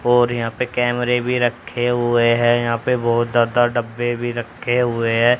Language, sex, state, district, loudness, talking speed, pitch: Hindi, male, Haryana, Charkhi Dadri, -19 LUFS, 190 wpm, 120 Hz